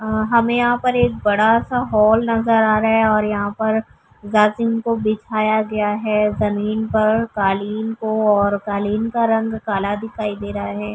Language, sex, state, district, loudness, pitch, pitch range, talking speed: Urdu, female, Uttar Pradesh, Budaun, -18 LUFS, 215 Hz, 210-225 Hz, 175 wpm